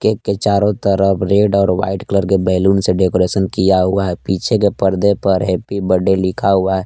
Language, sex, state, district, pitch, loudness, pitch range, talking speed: Hindi, male, Jharkhand, Palamu, 95 Hz, -15 LUFS, 95-100 Hz, 200 wpm